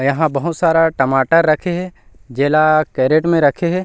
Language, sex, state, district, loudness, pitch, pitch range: Chhattisgarhi, male, Chhattisgarh, Rajnandgaon, -15 LUFS, 155 Hz, 140-170 Hz